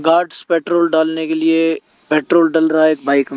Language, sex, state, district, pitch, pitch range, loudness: Hindi, male, Haryana, Rohtak, 160 Hz, 155-165 Hz, -15 LUFS